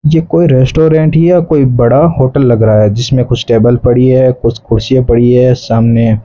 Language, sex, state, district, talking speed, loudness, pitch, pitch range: Hindi, male, Rajasthan, Bikaner, 200 wpm, -9 LUFS, 125 Hz, 115-140 Hz